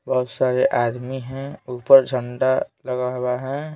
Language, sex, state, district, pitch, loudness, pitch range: Hindi, male, Bihar, Patna, 130 Hz, -21 LUFS, 125-135 Hz